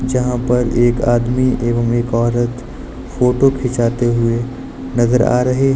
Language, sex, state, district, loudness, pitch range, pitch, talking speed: Hindi, male, Uttar Pradesh, Lucknow, -16 LUFS, 120-125 Hz, 120 Hz, 145 wpm